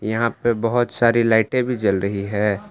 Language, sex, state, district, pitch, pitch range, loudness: Hindi, male, Jharkhand, Palamu, 115 Hz, 105-120 Hz, -19 LUFS